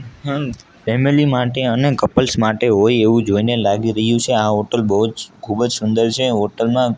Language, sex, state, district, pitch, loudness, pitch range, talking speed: Gujarati, male, Gujarat, Gandhinagar, 115 Hz, -16 LUFS, 110-125 Hz, 165 wpm